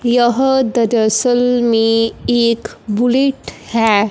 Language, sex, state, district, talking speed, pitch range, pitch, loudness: Hindi, male, Punjab, Fazilka, 90 wpm, 225-245 Hz, 235 Hz, -14 LUFS